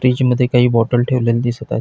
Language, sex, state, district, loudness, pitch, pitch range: Marathi, male, Maharashtra, Pune, -15 LUFS, 125 Hz, 120-125 Hz